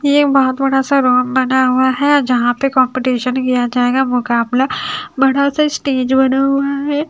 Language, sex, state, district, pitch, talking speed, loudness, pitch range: Hindi, female, Haryana, Charkhi Dadri, 265 Hz, 170 wpm, -14 LUFS, 255-280 Hz